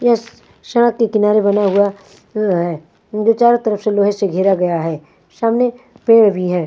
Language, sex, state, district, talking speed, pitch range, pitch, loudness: Hindi, female, Punjab, Fazilka, 215 wpm, 185-230 Hz, 205 Hz, -15 LUFS